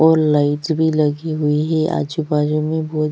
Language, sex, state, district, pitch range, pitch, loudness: Hindi, female, Chhattisgarh, Sukma, 150-160 Hz, 155 Hz, -18 LUFS